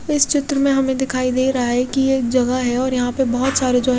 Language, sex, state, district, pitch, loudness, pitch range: Hindi, female, Bihar, Kaimur, 260 Hz, -18 LUFS, 250-270 Hz